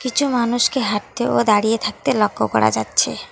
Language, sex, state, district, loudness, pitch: Bengali, female, West Bengal, Alipurduar, -18 LUFS, 210 Hz